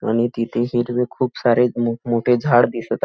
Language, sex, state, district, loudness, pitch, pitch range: Marathi, male, Maharashtra, Nagpur, -19 LUFS, 120 Hz, 115-125 Hz